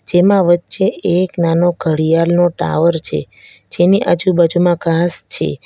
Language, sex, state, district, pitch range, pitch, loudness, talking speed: Gujarati, female, Gujarat, Valsad, 170-175 Hz, 175 Hz, -14 LUFS, 115 wpm